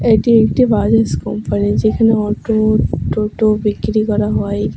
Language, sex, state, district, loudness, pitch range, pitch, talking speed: Bengali, female, West Bengal, Alipurduar, -15 LUFS, 210-225 Hz, 215 Hz, 140 wpm